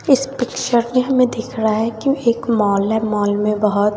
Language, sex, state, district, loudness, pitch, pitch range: Hindi, female, Bihar, West Champaran, -17 LUFS, 230 Hz, 210-255 Hz